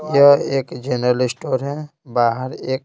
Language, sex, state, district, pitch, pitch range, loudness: Hindi, male, Bihar, Patna, 130 Hz, 125-140 Hz, -18 LUFS